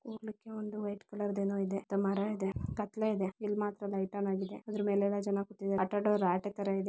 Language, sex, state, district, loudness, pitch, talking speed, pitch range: Kannada, female, Karnataka, Belgaum, -35 LUFS, 200 Hz, 215 wpm, 195-210 Hz